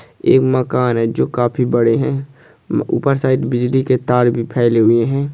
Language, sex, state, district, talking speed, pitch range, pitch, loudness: Hindi, male, Chhattisgarh, Sukma, 190 wpm, 120-135 Hz, 125 Hz, -16 LUFS